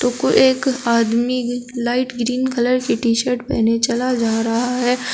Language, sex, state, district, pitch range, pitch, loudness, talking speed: Hindi, female, Uttar Pradesh, Shamli, 235-255 Hz, 245 Hz, -18 LUFS, 165 wpm